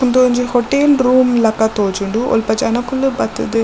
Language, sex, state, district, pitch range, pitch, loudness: Tulu, female, Karnataka, Dakshina Kannada, 220-255 Hz, 245 Hz, -15 LUFS